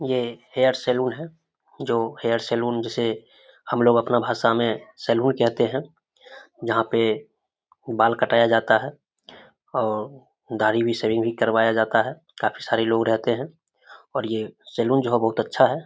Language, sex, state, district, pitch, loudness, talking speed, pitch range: Hindi, male, Bihar, Samastipur, 115 Hz, -23 LUFS, 160 wpm, 115-125 Hz